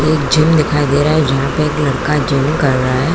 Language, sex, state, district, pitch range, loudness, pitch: Hindi, female, Chhattisgarh, Bilaspur, 140-155 Hz, -14 LUFS, 145 Hz